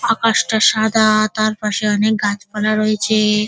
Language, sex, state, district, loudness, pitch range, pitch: Bengali, female, West Bengal, Dakshin Dinajpur, -16 LUFS, 210-220 Hz, 215 Hz